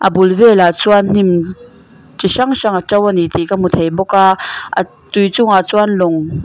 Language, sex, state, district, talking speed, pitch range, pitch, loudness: Mizo, female, Mizoram, Aizawl, 185 wpm, 180-210 Hz, 195 Hz, -12 LUFS